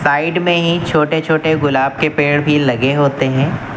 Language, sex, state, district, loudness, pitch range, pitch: Hindi, male, Uttar Pradesh, Lucknow, -14 LUFS, 140-160 Hz, 145 Hz